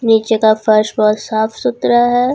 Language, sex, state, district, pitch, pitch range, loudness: Hindi, female, Jharkhand, Ranchi, 220 Hz, 215-240 Hz, -13 LUFS